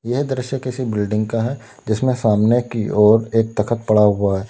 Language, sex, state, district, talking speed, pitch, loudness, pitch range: Hindi, male, Uttar Pradesh, Lalitpur, 200 wpm, 115 Hz, -18 LUFS, 105-125 Hz